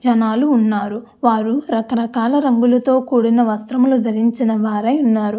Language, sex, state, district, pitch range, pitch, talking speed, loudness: Telugu, female, Andhra Pradesh, Anantapur, 220-255 Hz, 235 Hz, 120 wpm, -16 LUFS